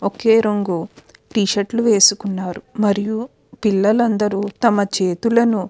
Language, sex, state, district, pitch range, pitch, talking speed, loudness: Telugu, female, Andhra Pradesh, Krishna, 200-225 Hz, 205 Hz, 115 wpm, -17 LUFS